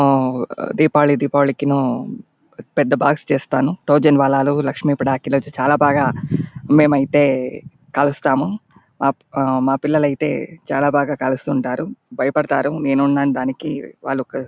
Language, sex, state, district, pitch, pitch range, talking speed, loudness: Telugu, male, Andhra Pradesh, Anantapur, 140 Hz, 135-145 Hz, 115 wpm, -18 LUFS